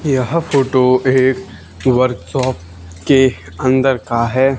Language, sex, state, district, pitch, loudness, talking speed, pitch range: Hindi, male, Haryana, Charkhi Dadri, 130 Hz, -15 LUFS, 120 wpm, 105-135 Hz